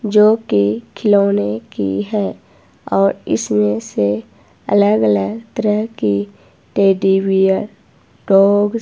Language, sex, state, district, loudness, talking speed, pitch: Hindi, female, Himachal Pradesh, Shimla, -16 LUFS, 110 wpm, 190 Hz